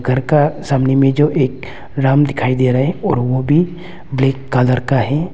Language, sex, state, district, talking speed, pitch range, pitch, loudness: Hindi, male, Arunachal Pradesh, Longding, 200 wpm, 130-145 Hz, 135 Hz, -15 LUFS